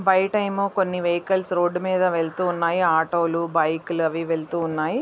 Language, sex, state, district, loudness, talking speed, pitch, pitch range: Telugu, female, Andhra Pradesh, Visakhapatnam, -22 LUFS, 165 wpm, 175 Hz, 165-185 Hz